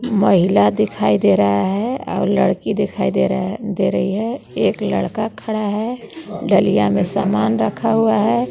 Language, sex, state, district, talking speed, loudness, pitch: Hindi, female, Jharkhand, Garhwa, 160 wpm, -17 LUFS, 210 Hz